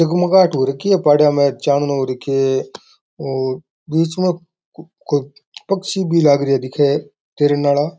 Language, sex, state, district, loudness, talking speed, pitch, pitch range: Rajasthani, male, Rajasthan, Nagaur, -17 LUFS, 165 wpm, 145 Hz, 140-170 Hz